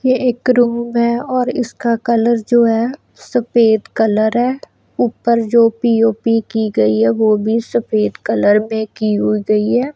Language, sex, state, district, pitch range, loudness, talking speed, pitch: Hindi, female, Punjab, Kapurthala, 220-240 Hz, -15 LUFS, 165 wpm, 230 Hz